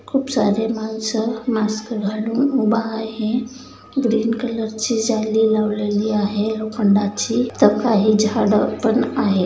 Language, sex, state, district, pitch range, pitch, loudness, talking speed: Marathi, female, Maharashtra, Dhule, 215-230 Hz, 220 Hz, -19 LUFS, 115 wpm